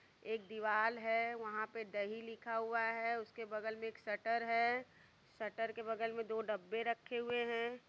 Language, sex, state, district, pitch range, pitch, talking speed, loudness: Hindi, female, Uttar Pradesh, Varanasi, 220-230 Hz, 225 Hz, 185 wpm, -40 LUFS